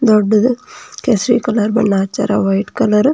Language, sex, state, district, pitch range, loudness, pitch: Kannada, female, Karnataka, Belgaum, 205-245 Hz, -15 LUFS, 215 Hz